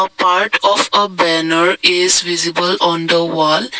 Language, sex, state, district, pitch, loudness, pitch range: English, male, Assam, Kamrup Metropolitan, 175 Hz, -13 LUFS, 170-190 Hz